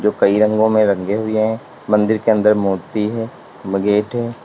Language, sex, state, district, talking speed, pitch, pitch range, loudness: Hindi, male, Uttar Pradesh, Lalitpur, 190 wpm, 105 Hz, 105-110 Hz, -17 LUFS